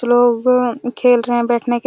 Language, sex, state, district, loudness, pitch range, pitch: Hindi, female, Chhattisgarh, Raigarh, -15 LUFS, 240-245 Hz, 245 Hz